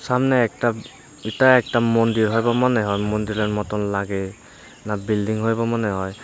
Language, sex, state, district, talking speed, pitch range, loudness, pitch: Bengali, male, Tripura, Unakoti, 155 wpm, 105-120 Hz, -20 LUFS, 110 Hz